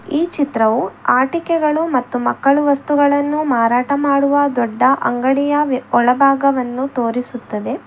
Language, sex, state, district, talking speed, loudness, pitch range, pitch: Kannada, female, Karnataka, Bangalore, 90 wpm, -16 LUFS, 245-285 Hz, 275 Hz